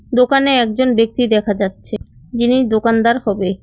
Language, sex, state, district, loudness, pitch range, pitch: Bengali, female, West Bengal, Cooch Behar, -15 LUFS, 215-250 Hz, 230 Hz